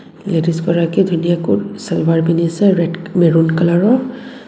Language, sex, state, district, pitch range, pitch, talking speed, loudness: Assamese, female, Assam, Kamrup Metropolitan, 165-195 Hz, 170 Hz, 120 wpm, -15 LUFS